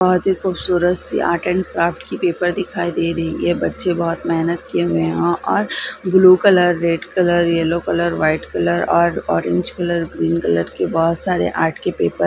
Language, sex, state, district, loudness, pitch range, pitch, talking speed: Hindi, female, Bihar, Lakhisarai, -18 LUFS, 165-180 Hz, 170 Hz, 195 wpm